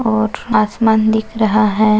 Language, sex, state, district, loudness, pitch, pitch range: Hindi, female, Maharashtra, Sindhudurg, -15 LUFS, 220 Hz, 215-220 Hz